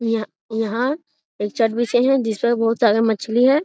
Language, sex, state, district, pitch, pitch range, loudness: Hindi, female, Bihar, Jamui, 230 Hz, 225-245 Hz, -19 LUFS